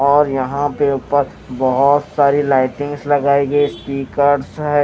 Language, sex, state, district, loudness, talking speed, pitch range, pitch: Hindi, male, Haryana, Rohtak, -16 LUFS, 135 wpm, 135-145 Hz, 140 Hz